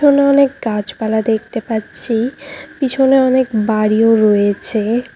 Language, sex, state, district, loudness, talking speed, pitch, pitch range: Bengali, female, West Bengal, Cooch Behar, -15 LUFS, 105 wpm, 225 Hz, 220-270 Hz